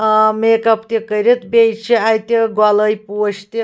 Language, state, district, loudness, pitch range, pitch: Kashmiri, Punjab, Kapurthala, -14 LUFS, 215-225 Hz, 220 Hz